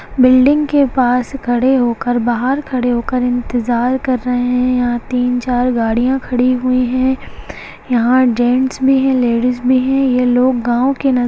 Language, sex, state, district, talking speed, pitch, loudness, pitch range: Hindi, female, Bihar, Begusarai, 170 wpm, 250 Hz, -14 LUFS, 245-260 Hz